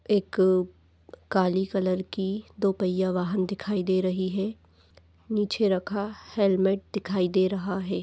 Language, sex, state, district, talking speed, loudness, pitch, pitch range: Hindi, female, Chhattisgarh, Bastar, 135 wpm, -27 LUFS, 190 Hz, 185-200 Hz